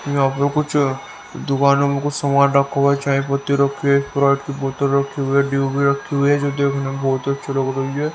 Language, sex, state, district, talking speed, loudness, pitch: Hindi, male, Haryana, Rohtak, 230 wpm, -18 LUFS, 140 Hz